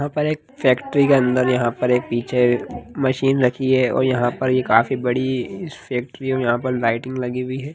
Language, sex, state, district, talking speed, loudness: Hindi, male, Bihar, Gaya, 215 wpm, -20 LUFS